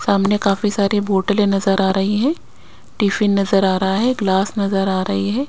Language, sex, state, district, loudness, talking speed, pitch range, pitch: Hindi, female, Chandigarh, Chandigarh, -17 LUFS, 195 wpm, 195-205 Hz, 200 Hz